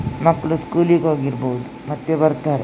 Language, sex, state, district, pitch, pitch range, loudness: Kannada, female, Karnataka, Dakshina Kannada, 150 Hz, 135-160 Hz, -19 LUFS